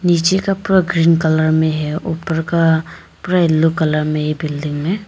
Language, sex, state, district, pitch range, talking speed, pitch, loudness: Hindi, female, Arunachal Pradesh, Papum Pare, 155-175 Hz, 190 wpm, 160 Hz, -16 LUFS